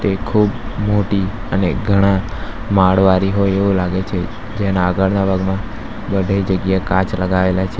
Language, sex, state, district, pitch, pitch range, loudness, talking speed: Gujarati, male, Gujarat, Valsad, 95 Hz, 95-100 Hz, -17 LUFS, 140 wpm